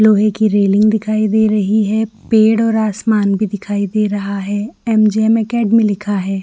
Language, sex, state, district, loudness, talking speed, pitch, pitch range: Hindi, female, Chhattisgarh, Bilaspur, -14 LUFS, 195 wpm, 215 Hz, 205-220 Hz